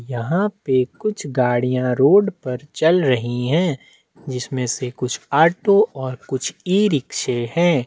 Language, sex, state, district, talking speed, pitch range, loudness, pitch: Hindi, male, Chhattisgarh, Jashpur, 145 wpm, 125-175 Hz, -19 LUFS, 130 Hz